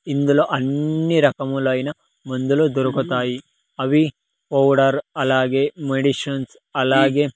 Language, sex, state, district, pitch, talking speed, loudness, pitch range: Telugu, male, Andhra Pradesh, Sri Satya Sai, 135 Hz, 80 wpm, -19 LUFS, 130-145 Hz